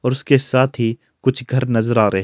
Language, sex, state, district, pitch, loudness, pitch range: Hindi, male, Himachal Pradesh, Shimla, 125 Hz, -17 LUFS, 115-130 Hz